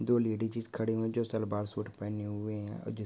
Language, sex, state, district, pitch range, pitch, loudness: Hindi, male, Chhattisgarh, Korba, 105-115 Hz, 110 Hz, -35 LUFS